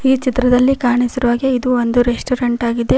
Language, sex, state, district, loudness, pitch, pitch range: Kannada, female, Karnataka, Koppal, -15 LUFS, 245 Hz, 240-255 Hz